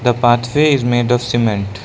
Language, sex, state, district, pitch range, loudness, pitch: English, male, Arunachal Pradesh, Lower Dibang Valley, 120-125 Hz, -15 LUFS, 120 Hz